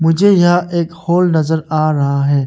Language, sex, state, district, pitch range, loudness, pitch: Hindi, male, Arunachal Pradesh, Longding, 155-175 Hz, -14 LUFS, 160 Hz